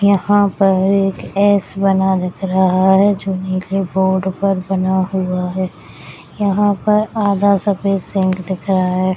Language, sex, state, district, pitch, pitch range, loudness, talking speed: Hindi, female, Bihar, Madhepura, 190 Hz, 185-200 Hz, -16 LUFS, 155 wpm